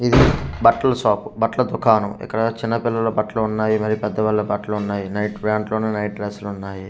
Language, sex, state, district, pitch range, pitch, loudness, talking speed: Telugu, male, Andhra Pradesh, Manyam, 105-115 Hz, 110 Hz, -20 LUFS, 180 wpm